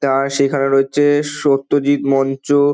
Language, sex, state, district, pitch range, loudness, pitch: Bengali, male, West Bengal, Dakshin Dinajpur, 135-145 Hz, -16 LUFS, 140 Hz